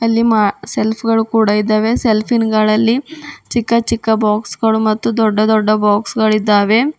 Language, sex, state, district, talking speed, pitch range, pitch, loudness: Kannada, female, Karnataka, Bidar, 155 wpm, 215-230 Hz, 220 Hz, -14 LUFS